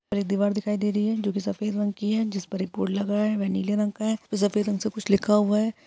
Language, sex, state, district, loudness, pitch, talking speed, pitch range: Hindi, female, Maharashtra, Nagpur, -25 LUFS, 210 Hz, 325 wpm, 200-210 Hz